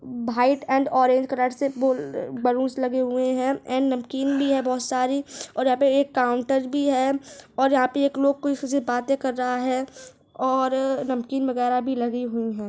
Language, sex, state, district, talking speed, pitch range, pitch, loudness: Hindi, male, Chhattisgarh, Rajnandgaon, 195 wpm, 255-275 Hz, 260 Hz, -23 LUFS